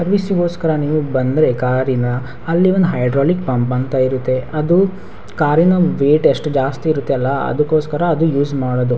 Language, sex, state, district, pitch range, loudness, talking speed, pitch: Kannada, male, Karnataka, Raichur, 130-165 Hz, -16 LUFS, 135 wpm, 145 Hz